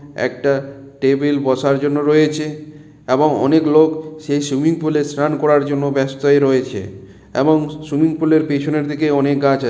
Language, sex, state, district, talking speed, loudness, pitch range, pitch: Bengali, male, West Bengal, Malda, 160 wpm, -16 LUFS, 140-150 Hz, 145 Hz